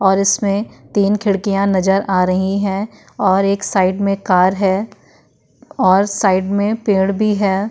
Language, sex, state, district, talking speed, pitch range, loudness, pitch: Hindi, female, Uttarakhand, Tehri Garhwal, 155 wpm, 190-205 Hz, -16 LUFS, 195 Hz